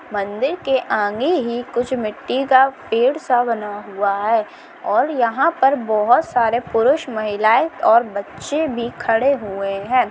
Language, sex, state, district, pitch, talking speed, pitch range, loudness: Hindi, female, Bihar, Saran, 240 Hz, 150 wpm, 215-265 Hz, -18 LUFS